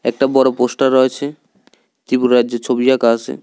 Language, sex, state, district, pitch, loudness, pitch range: Bengali, male, Tripura, South Tripura, 130 Hz, -15 LUFS, 125-135 Hz